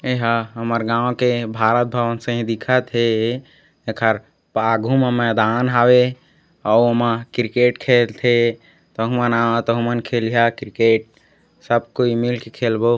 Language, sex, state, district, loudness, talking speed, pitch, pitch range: Chhattisgarhi, male, Chhattisgarh, Korba, -18 LUFS, 130 wpm, 120 Hz, 115-120 Hz